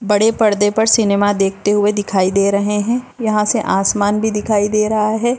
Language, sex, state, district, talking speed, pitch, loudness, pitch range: Hindi, female, Bihar, Jamui, 200 wpm, 210 Hz, -15 LUFS, 205-220 Hz